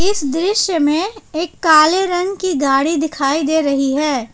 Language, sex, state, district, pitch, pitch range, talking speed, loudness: Hindi, female, Jharkhand, Palamu, 315 Hz, 290-360 Hz, 165 wpm, -16 LUFS